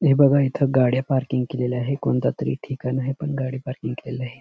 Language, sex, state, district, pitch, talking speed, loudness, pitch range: Marathi, male, Maharashtra, Dhule, 130 Hz, 215 wpm, -23 LUFS, 125-135 Hz